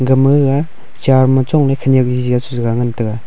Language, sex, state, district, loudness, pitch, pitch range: Wancho, male, Arunachal Pradesh, Longding, -14 LUFS, 130 Hz, 125-135 Hz